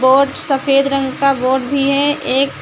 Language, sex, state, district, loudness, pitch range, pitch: Hindi, female, Uttar Pradesh, Lucknow, -15 LUFS, 265-275 Hz, 275 Hz